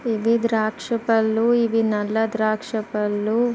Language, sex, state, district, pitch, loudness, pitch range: Telugu, female, Andhra Pradesh, Guntur, 225 Hz, -21 LUFS, 215-230 Hz